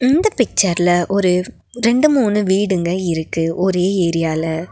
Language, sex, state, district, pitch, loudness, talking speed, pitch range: Tamil, female, Tamil Nadu, Nilgiris, 185 Hz, -16 LUFS, 125 wpm, 170-210 Hz